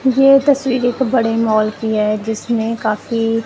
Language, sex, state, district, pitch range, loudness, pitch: Hindi, female, Punjab, Kapurthala, 220-255 Hz, -16 LUFS, 225 Hz